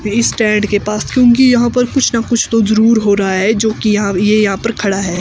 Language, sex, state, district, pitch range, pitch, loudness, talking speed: Hindi, female, Himachal Pradesh, Shimla, 205-230 Hz, 215 Hz, -12 LUFS, 265 wpm